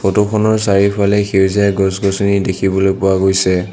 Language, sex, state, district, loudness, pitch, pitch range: Assamese, male, Assam, Sonitpur, -14 LUFS, 95 Hz, 95-100 Hz